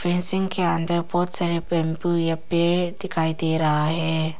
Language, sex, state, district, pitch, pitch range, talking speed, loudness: Hindi, female, Arunachal Pradesh, Papum Pare, 170 Hz, 160-175 Hz, 165 wpm, -21 LUFS